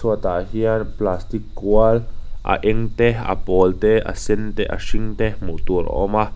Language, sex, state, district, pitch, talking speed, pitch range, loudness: Mizo, male, Mizoram, Aizawl, 105 Hz, 200 wpm, 95-110 Hz, -20 LUFS